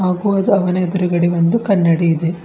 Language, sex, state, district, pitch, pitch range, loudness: Kannada, female, Karnataka, Bidar, 180 Hz, 170-195 Hz, -15 LUFS